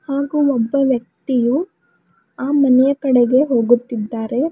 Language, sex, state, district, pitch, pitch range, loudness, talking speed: Kannada, female, Karnataka, Bidar, 260 Hz, 240-280 Hz, -17 LUFS, 95 wpm